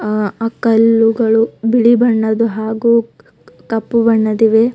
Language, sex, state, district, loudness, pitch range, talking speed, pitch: Kannada, female, Karnataka, Bidar, -13 LUFS, 220-230 Hz, 90 wpm, 225 Hz